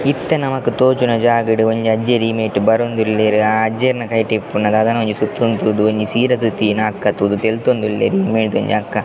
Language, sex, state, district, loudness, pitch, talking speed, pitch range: Tulu, male, Karnataka, Dakshina Kannada, -16 LUFS, 110 Hz, 170 wpm, 110-120 Hz